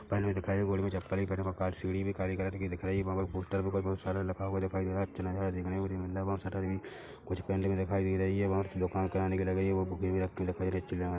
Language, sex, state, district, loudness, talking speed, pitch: Hindi, male, Chhattisgarh, Rajnandgaon, -34 LUFS, 350 wpm, 95 Hz